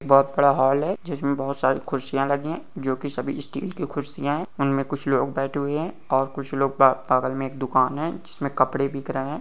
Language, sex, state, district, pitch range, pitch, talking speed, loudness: Hindi, male, West Bengal, Malda, 135-145 Hz, 140 Hz, 235 wpm, -24 LUFS